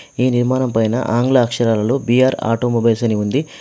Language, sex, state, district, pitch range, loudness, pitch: Telugu, male, Telangana, Adilabad, 115-130 Hz, -16 LUFS, 120 Hz